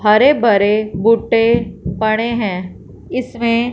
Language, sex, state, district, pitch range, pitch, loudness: Hindi, female, Punjab, Fazilka, 210-235 Hz, 225 Hz, -15 LUFS